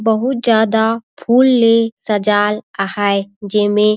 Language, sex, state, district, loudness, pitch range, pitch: Surgujia, female, Chhattisgarh, Sarguja, -15 LUFS, 205-230 Hz, 220 Hz